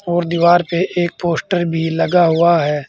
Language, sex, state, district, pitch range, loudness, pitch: Hindi, male, Uttar Pradesh, Saharanpur, 165-175 Hz, -15 LUFS, 170 Hz